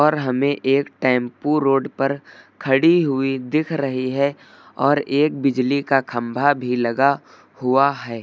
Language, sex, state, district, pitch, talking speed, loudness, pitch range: Hindi, male, Uttar Pradesh, Lucknow, 135 Hz, 140 wpm, -19 LUFS, 130-145 Hz